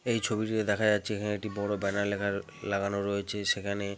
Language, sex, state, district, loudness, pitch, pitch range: Bengali, male, West Bengal, Purulia, -30 LUFS, 100 Hz, 100-105 Hz